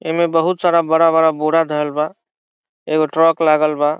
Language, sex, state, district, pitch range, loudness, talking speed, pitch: Bhojpuri, male, Bihar, Saran, 155-165 Hz, -16 LUFS, 225 wpm, 160 Hz